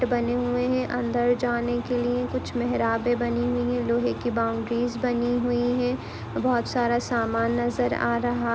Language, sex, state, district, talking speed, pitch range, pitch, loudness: Hindi, female, Maharashtra, Pune, 170 wpm, 235-245 Hz, 240 Hz, -25 LUFS